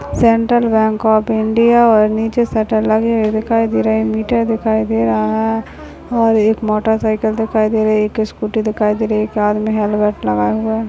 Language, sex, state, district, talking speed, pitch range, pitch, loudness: Hindi, male, Uttarakhand, Tehri Garhwal, 205 wpm, 215-225 Hz, 220 Hz, -15 LUFS